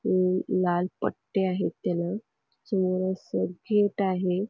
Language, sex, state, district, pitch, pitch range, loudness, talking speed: Marathi, female, Karnataka, Belgaum, 185 Hz, 185-195 Hz, -27 LUFS, 105 wpm